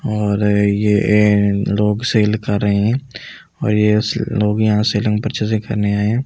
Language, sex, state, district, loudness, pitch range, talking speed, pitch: Hindi, male, Delhi, New Delhi, -16 LUFS, 105-110 Hz, 190 wpm, 105 Hz